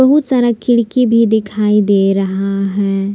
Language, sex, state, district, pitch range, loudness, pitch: Hindi, female, Jharkhand, Palamu, 195-240 Hz, -13 LUFS, 210 Hz